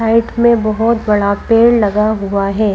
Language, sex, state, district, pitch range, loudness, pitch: Hindi, female, Madhya Pradesh, Bhopal, 205-230 Hz, -13 LUFS, 215 Hz